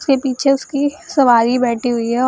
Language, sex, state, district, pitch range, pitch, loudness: Hindi, female, Bihar, Samastipur, 240-275 Hz, 255 Hz, -16 LUFS